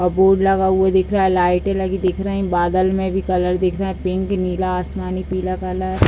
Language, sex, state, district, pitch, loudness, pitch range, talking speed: Hindi, female, Bihar, Jahanabad, 185 Hz, -18 LUFS, 185-190 Hz, 235 wpm